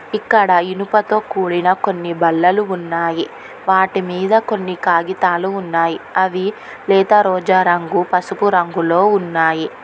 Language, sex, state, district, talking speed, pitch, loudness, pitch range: Telugu, female, Telangana, Hyderabad, 110 wpm, 185 Hz, -16 LUFS, 175-195 Hz